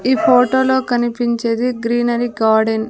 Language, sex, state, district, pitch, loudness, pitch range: Telugu, female, Andhra Pradesh, Sri Satya Sai, 240 Hz, -16 LUFS, 230-250 Hz